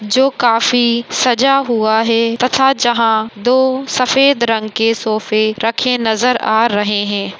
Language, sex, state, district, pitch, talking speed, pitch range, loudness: Hindi, female, Maharashtra, Nagpur, 230 Hz, 140 wpm, 220-250 Hz, -14 LUFS